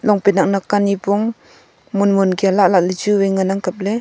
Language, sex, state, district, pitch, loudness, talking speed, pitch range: Wancho, female, Arunachal Pradesh, Longding, 200 Hz, -16 LUFS, 255 wpm, 190-205 Hz